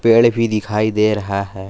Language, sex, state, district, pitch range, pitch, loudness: Hindi, male, Jharkhand, Palamu, 100-115 Hz, 105 Hz, -17 LUFS